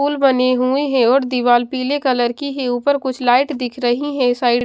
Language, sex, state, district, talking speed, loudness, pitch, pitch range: Hindi, female, Haryana, Jhajjar, 230 wpm, -17 LUFS, 255 Hz, 245-275 Hz